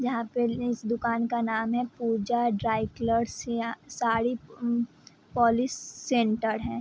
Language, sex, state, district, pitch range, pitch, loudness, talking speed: Hindi, female, Bihar, Vaishali, 225-240 Hz, 235 Hz, -28 LUFS, 140 wpm